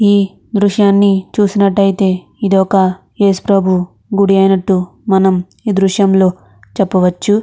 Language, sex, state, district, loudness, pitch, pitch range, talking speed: Telugu, female, Andhra Pradesh, Krishna, -13 LUFS, 195 Hz, 190-200 Hz, 105 wpm